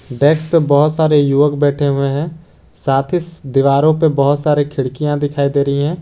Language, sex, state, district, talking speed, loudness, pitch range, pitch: Hindi, male, Jharkhand, Garhwa, 190 wpm, -14 LUFS, 140-155 Hz, 145 Hz